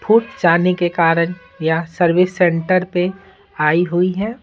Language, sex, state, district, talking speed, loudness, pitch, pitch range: Hindi, male, Bihar, Patna, 150 wpm, -17 LUFS, 180 Hz, 170-185 Hz